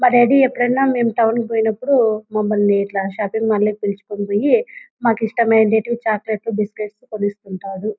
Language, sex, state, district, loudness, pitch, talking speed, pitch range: Telugu, female, Andhra Pradesh, Anantapur, -18 LUFS, 220 Hz, 145 wpm, 205-235 Hz